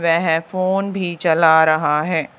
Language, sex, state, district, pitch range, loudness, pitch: Hindi, female, Haryana, Charkhi Dadri, 160-185 Hz, -17 LUFS, 165 Hz